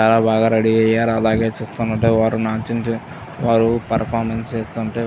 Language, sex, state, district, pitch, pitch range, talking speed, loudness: Telugu, male, Andhra Pradesh, Chittoor, 115 Hz, 110-115 Hz, 140 wpm, -18 LUFS